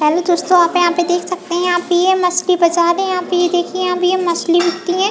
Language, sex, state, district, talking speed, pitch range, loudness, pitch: Hindi, female, Chhattisgarh, Bilaspur, 245 wpm, 345-360 Hz, -15 LUFS, 350 Hz